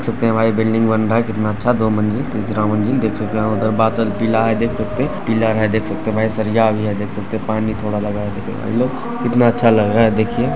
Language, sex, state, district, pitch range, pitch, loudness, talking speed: Hindi, male, Bihar, Purnia, 105-115 Hz, 110 Hz, -17 LUFS, 265 wpm